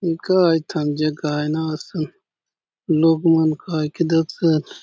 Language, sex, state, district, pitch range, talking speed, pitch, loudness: Halbi, male, Chhattisgarh, Bastar, 155-165 Hz, 150 wpm, 160 Hz, -20 LUFS